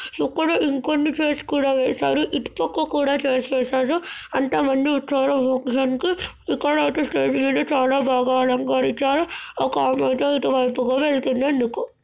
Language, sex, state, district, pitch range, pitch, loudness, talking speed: Telugu, male, Andhra Pradesh, Krishna, 260-290 Hz, 270 Hz, -21 LUFS, 115 wpm